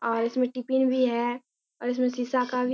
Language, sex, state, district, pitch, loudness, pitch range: Hindi, female, Bihar, Kishanganj, 250 Hz, -27 LUFS, 245-255 Hz